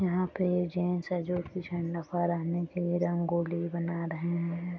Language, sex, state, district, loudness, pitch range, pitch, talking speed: Hindi, female, Bihar, Sitamarhi, -32 LUFS, 170-180 Hz, 175 Hz, 190 wpm